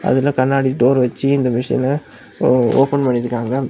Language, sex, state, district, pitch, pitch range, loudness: Tamil, male, Tamil Nadu, Kanyakumari, 130 Hz, 125-135 Hz, -16 LUFS